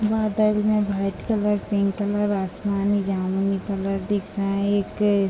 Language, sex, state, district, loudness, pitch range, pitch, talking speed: Hindi, female, Bihar, Madhepura, -23 LUFS, 195-210 Hz, 200 Hz, 160 wpm